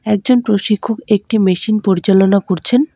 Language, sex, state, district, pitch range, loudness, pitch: Bengali, female, West Bengal, Alipurduar, 195-225 Hz, -14 LUFS, 210 Hz